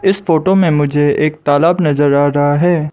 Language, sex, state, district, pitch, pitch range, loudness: Hindi, male, Arunachal Pradesh, Lower Dibang Valley, 150 Hz, 145-170 Hz, -13 LUFS